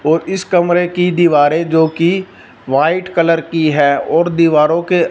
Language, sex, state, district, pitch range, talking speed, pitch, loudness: Hindi, male, Punjab, Fazilka, 155-175 Hz, 150 wpm, 165 Hz, -13 LUFS